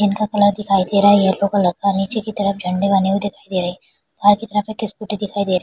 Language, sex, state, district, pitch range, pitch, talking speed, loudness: Hindi, female, Bihar, Kishanganj, 195-210 Hz, 200 Hz, 255 wpm, -18 LUFS